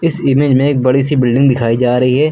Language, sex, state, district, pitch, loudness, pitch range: Hindi, male, Uttar Pradesh, Lucknow, 135 Hz, -12 LUFS, 125-145 Hz